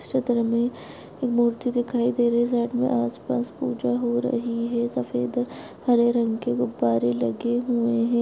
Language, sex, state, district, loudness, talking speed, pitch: Hindi, female, Goa, North and South Goa, -24 LUFS, 180 wpm, 235 Hz